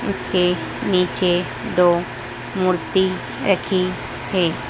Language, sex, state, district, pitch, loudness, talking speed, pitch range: Hindi, female, Madhya Pradesh, Dhar, 180 Hz, -20 LUFS, 75 wpm, 175-185 Hz